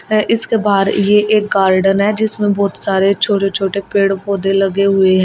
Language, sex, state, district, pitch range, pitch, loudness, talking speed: Hindi, female, Uttar Pradesh, Shamli, 195-210 Hz, 200 Hz, -14 LUFS, 185 wpm